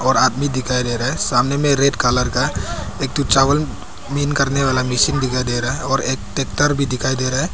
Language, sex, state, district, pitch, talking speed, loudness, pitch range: Hindi, male, Arunachal Pradesh, Papum Pare, 135 Hz, 240 wpm, -18 LUFS, 125-140 Hz